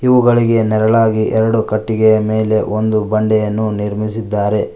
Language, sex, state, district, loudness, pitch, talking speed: Kannada, male, Karnataka, Koppal, -14 LUFS, 110 Hz, 100 wpm